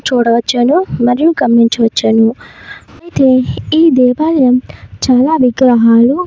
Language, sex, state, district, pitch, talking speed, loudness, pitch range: Telugu, female, Karnataka, Bellary, 250 Hz, 85 wpm, -10 LUFS, 235-285 Hz